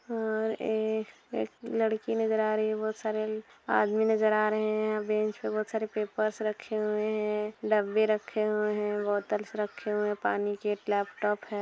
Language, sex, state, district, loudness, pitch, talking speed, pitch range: Hindi, female, Bihar, Saran, -30 LUFS, 215 Hz, 185 wpm, 210-220 Hz